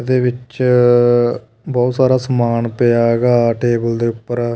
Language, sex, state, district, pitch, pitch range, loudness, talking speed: Punjabi, male, Punjab, Kapurthala, 120 Hz, 115-125 Hz, -15 LUFS, 130 wpm